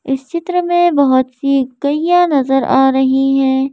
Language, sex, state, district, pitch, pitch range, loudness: Hindi, female, Madhya Pradesh, Bhopal, 270 Hz, 265-330 Hz, -13 LUFS